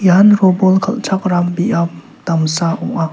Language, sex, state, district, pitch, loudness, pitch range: Garo, male, Meghalaya, South Garo Hills, 185 Hz, -14 LUFS, 170-195 Hz